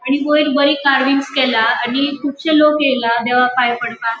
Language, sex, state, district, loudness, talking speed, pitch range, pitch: Konkani, female, Goa, North and South Goa, -15 LUFS, 170 wpm, 240-285 Hz, 270 Hz